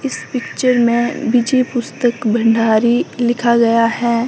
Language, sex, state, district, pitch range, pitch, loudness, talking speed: Hindi, female, Himachal Pradesh, Shimla, 230-250 Hz, 240 Hz, -15 LUFS, 125 wpm